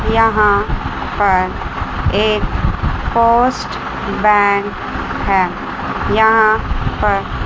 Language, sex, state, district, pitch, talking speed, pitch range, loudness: Hindi, female, Chandigarh, Chandigarh, 215 Hz, 65 wpm, 205-225 Hz, -15 LUFS